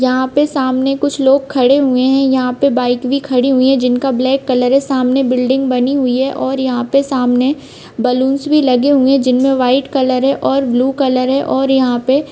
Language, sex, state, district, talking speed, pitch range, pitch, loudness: Hindi, female, Bihar, Vaishali, 190 wpm, 255-275 Hz, 265 Hz, -13 LUFS